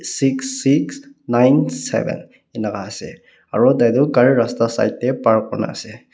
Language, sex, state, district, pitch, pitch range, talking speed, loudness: Nagamese, male, Nagaland, Kohima, 130 Hz, 120-140 Hz, 155 wpm, -17 LUFS